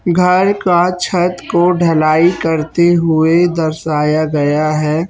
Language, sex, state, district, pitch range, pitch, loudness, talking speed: Hindi, male, Chhattisgarh, Raipur, 155-175 Hz, 165 Hz, -13 LUFS, 115 wpm